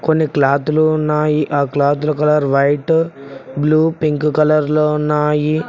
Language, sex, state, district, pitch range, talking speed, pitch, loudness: Telugu, male, Telangana, Mahabubabad, 145-155 Hz, 125 wpm, 150 Hz, -15 LUFS